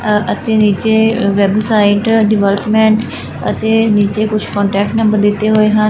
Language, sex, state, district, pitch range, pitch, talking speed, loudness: Punjabi, female, Punjab, Fazilka, 205-220 Hz, 215 Hz, 130 wpm, -12 LUFS